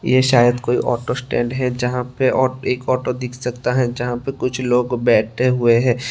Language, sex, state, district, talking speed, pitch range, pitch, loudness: Hindi, male, Tripura, West Tripura, 195 wpm, 120-130 Hz, 125 Hz, -18 LUFS